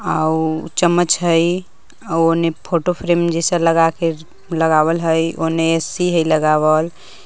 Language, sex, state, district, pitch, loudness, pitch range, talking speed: Magahi, female, Jharkhand, Palamu, 165 Hz, -16 LUFS, 160-170 Hz, 130 wpm